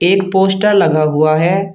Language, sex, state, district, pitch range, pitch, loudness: Hindi, male, Uttar Pradesh, Shamli, 155-195 Hz, 190 Hz, -12 LUFS